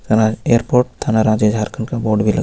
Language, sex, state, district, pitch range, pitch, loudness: Hindi, male, Jharkhand, Ranchi, 110-120 Hz, 110 Hz, -16 LUFS